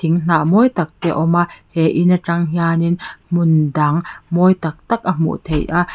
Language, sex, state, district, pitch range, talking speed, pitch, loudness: Mizo, female, Mizoram, Aizawl, 160-175 Hz, 210 wpm, 170 Hz, -16 LUFS